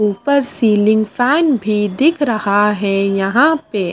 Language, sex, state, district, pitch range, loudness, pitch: Hindi, female, Bihar, Kaimur, 205-280 Hz, -15 LUFS, 215 Hz